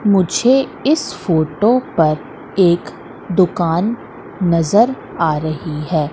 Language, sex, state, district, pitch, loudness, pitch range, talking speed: Hindi, female, Madhya Pradesh, Katni, 175 Hz, -16 LUFS, 160-220 Hz, 100 wpm